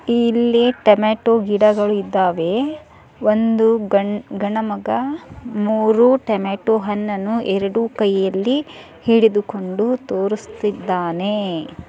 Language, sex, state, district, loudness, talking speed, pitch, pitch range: Kannada, male, Karnataka, Dharwad, -18 LUFS, 75 wpm, 215 Hz, 200-230 Hz